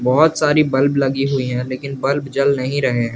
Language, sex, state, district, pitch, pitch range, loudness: Hindi, male, Jharkhand, Garhwa, 135 Hz, 130-140 Hz, -17 LUFS